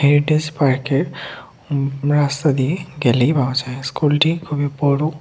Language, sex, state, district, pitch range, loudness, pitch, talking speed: Bengali, male, Tripura, West Tripura, 135-150 Hz, -18 LUFS, 145 Hz, 115 wpm